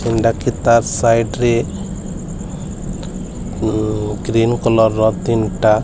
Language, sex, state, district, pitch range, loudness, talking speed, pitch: Odia, male, Odisha, Sambalpur, 110-115 Hz, -17 LUFS, 90 wpm, 115 Hz